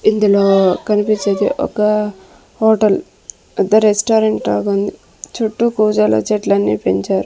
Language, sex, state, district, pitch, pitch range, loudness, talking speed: Telugu, female, Andhra Pradesh, Sri Satya Sai, 205 Hz, 180-215 Hz, -15 LUFS, 100 wpm